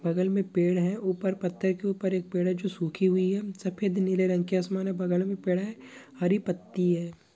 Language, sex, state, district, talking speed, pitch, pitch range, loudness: Hindi, male, Jharkhand, Jamtara, 230 wpm, 185 Hz, 180-195 Hz, -28 LUFS